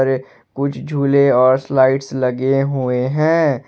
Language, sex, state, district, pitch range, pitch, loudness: Hindi, male, Jharkhand, Ranchi, 130-140 Hz, 135 Hz, -16 LUFS